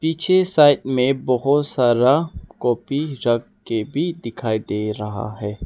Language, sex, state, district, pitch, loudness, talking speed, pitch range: Hindi, male, Arunachal Pradesh, Lower Dibang Valley, 125 Hz, -20 LUFS, 140 wpm, 110-150 Hz